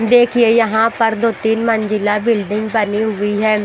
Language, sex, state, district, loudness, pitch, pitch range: Hindi, female, Bihar, Patna, -15 LUFS, 220 Hz, 210-230 Hz